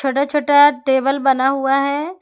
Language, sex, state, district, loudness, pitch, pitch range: Hindi, female, Jharkhand, Ranchi, -16 LUFS, 275 Hz, 270-290 Hz